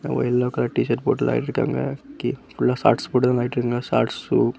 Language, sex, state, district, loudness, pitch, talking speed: Tamil, male, Tamil Nadu, Kanyakumari, -22 LUFS, 120 Hz, 155 wpm